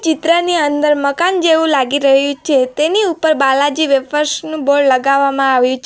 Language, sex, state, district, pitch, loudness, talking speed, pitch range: Gujarati, female, Gujarat, Valsad, 290 Hz, -13 LUFS, 185 wpm, 275-320 Hz